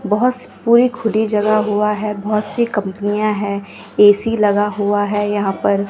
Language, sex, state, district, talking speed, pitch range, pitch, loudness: Hindi, female, Bihar, West Champaran, 175 wpm, 205-215 Hz, 210 Hz, -16 LUFS